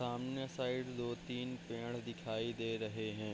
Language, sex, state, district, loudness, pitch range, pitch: Hindi, male, Bihar, Bhagalpur, -42 LUFS, 115-125 Hz, 120 Hz